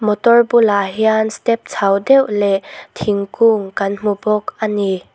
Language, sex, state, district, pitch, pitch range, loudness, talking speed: Mizo, female, Mizoram, Aizawl, 210 Hz, 200-225 Hz, -15 LUFS, 150 wpm